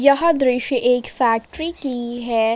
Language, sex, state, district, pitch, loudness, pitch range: Hindi, female, Jharkhand, Palamu, 250 Hz, -19 LUFS, 240-280 Hz